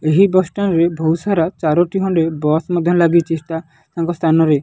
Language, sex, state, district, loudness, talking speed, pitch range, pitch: Odia, male, Odisha, Nuapada, -16 LUFS, 180 wpm, 160-175 Hz, 170 Hz